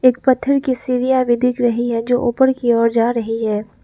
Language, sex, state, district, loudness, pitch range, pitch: Hindi, female, Arunachal Pradesh, Lower Dibang Valley, -17 LUFS, 235-255 Hz, 245 Hz